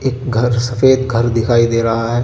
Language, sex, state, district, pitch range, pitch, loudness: Hindi, male, Jharkhand, Garhwa, 115-125 Hz, 120 Hz, -14 LUFS